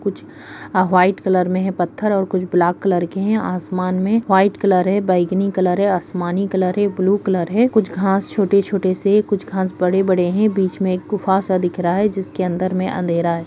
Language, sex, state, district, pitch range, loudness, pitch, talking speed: Kumaoni, female, Uttarakhand, Uttarkashi, 180-200 Hz, -18 LUFS, 190 Hz, 210 wpm